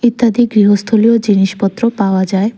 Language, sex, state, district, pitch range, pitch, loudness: Bengali, female, Tripura, West Tripura, 200-235 Hz, 215 Hz, -12 LUFS